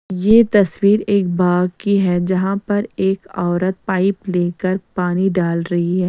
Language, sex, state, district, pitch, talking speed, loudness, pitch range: Hindi, female, Bihar, West Champaran, 185 Hz, 160 wpm, -17 LUFS, 180-200 Hz